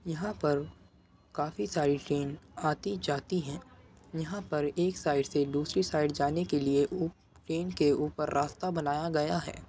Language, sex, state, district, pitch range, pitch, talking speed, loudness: Hindi, male, Uttar Pradesh, Muzaffarnagar, 145-165 Hz, 150 Hz, 160 wpm, -31 LUFS